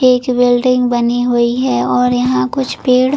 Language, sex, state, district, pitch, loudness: Hindi, female, Chhattisgarh, Bilaspur, 245 Hz, -13 LUFS